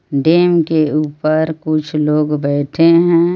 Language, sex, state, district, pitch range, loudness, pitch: Hindi, female, Jharkhand, Palamu, 150-165 Hz, -14 LUFS, 155 Hz